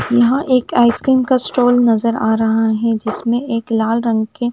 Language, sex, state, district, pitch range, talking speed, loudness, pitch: Hindi, female, Punjab, Fazilka, 225-245 Hz, 185 wpm, -15 LUFS, 235 Hz